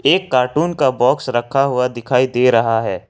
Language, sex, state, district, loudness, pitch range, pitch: Hindi, male, Jharkhand, Ranchi, -16 LUFS, 120-135 Hz, 125 Hz